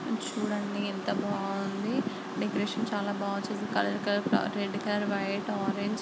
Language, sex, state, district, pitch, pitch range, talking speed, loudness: Telugu, female, Andhra Pradesh, Guntur, 205 Hz, 200-210 Hz, 120 wpm, -31 LUFS